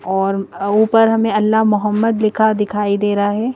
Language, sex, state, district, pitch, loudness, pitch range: Hindi, female, Madhya Pradesh, Bhopal, 210 Hz, -15 LUFS, 205-220 Hz